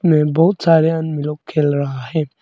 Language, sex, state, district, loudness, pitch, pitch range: Hindi, male, Arunachal Pradesh, Longding, -17 LUFS, 155 Hz, 145-165 Hz